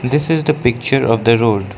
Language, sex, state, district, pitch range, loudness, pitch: English, male, Arunachal Pradesh, Lower Dibang Valley, 115-145 Hz, -15 LUFS, 120 Hz